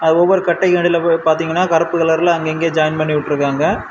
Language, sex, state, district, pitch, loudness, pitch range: Tamil, male, Tamil Nadu, Kanyakumari, 165 Hz, -15 LUFS, 155-170 Hz